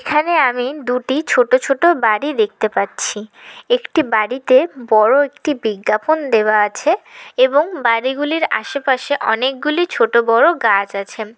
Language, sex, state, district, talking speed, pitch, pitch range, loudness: Bengali, female, West Bengal, Jalpaiguri, 125 wpm, 275 Hz, 230-325 Hz, -16 LUFS